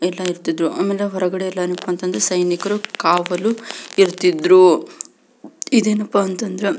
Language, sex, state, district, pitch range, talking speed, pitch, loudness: Kannada, female, Karnataka, Belgaum, 180-225 Hz, 105 wpm, 195 Hz, -18 LUFS